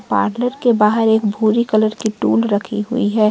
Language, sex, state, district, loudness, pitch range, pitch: Hindi, female, Jharkhand, Ranchi, -16 LUFS, 210-230 Hz, 220 Hz